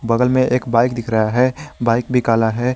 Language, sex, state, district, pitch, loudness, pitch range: Hindi, male, Jharkhand, Garhwa, 120 Hz, -17 LUFS, 115-125 Hz